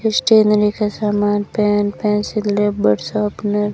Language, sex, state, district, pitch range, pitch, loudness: Hindi, female, Rajasthan, Bikaner, 205-215 Hz, 210 Hz, -17 LUFS